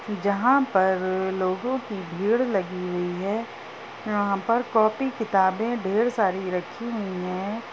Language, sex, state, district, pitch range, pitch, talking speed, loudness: Hindi, female, Bihar, Darbhanga, 190-230 Hz, 200 Hz, 130 wpm, -25 LUFS